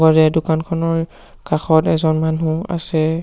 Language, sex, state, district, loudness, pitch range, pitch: Assamese, male, Assam, Sonitpur, -17 LUFS, 160-165 Hz, 160 Hz